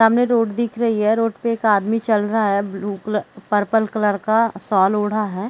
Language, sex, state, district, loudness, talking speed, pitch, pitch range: Hindi, female, Chhattisgarh, Balrampur, -19 LUFS, 205 wpm, 215 Hz, 205-225 Hz